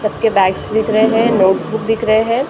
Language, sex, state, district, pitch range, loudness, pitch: Hindi, female, Maharashtra, Gondia, 210-225 Hz, -14 LUFS, 220 Hz